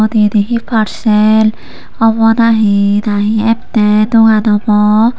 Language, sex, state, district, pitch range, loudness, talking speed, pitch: Chakma, female, Tripura, Unakoti, 210-225 Hz, -11 LUFS, 125 wpm, 215 Hz